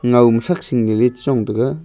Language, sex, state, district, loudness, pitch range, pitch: Wancho, male, Arunachal Pradesh, Longding, -16 LUFS, 115-135 Hz, 120 Hz